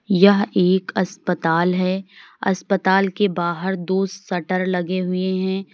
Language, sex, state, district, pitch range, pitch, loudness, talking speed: Hindi, female, Uttar Pradesh, Lalitpur, 180-195 Hz, 185 Hz, -20 LUFS, 125 wpm